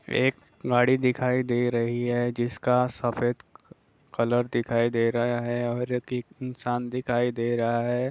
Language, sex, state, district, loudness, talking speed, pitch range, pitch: Hindi, male, Bihar, Jahanabad, -26 LUFS, 150 wpm, 120-125 Hz, 120 Hz